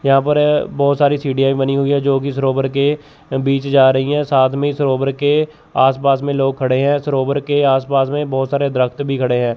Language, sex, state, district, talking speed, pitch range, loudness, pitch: Hindi, male, Chandigarh, Chandigarh, 245 wpm, 135-145 Hz, -16 LUFS, 140 Hz